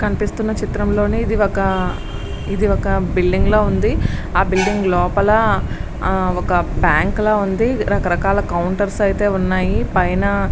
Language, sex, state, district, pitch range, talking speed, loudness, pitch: Telugu, female, Andhra Pradesh, Srikakulam, 180-205 Hz, 120 wpm, -17 LUFS, 190 Hz